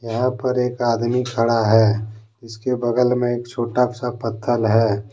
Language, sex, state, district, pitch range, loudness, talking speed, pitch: Hindi, male, Jharkhand, Deoghar, 115-125 Hz, -20 LUFS, 165 wpm, 120 Hz